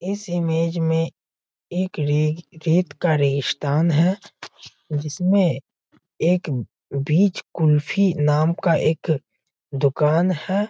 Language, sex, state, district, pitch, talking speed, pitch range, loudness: Hindi, male, Bihar, Sitamarhi, 165 Hz, 100 wpm, 150-180 Hz, -21 LUFS